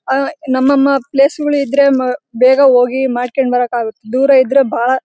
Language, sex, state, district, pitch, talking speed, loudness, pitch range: Kannada, female, Karnataka, Bellary, 265 Hz, 130 wpm, -13 LUFS, 250-275 Hz